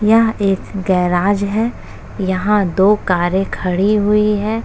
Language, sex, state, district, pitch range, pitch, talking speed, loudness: Hindi, female, Uttar Pradesh, Etah, 190-210 Hz, 200 Hz, 130 wpm, -16 LUFS